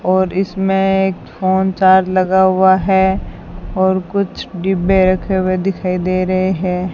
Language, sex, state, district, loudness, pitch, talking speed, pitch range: Hindi, female, Rajasthan, Bikaner, -15 LUFS, 190 Hz, 145 wpm, 185-190 Hz